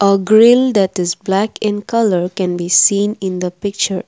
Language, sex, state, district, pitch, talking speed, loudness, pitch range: English, female, Assam, Kamrup Metropolitan, 200 Hz, 190 wpm, -14 LUFS, 180-210 Hz